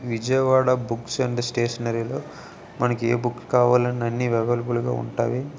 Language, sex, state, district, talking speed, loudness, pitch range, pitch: Telugu, male, Andhra Pradesh, Krishna, 140 wpm, -23 LUFS, 115-125 Hz, 120 Hz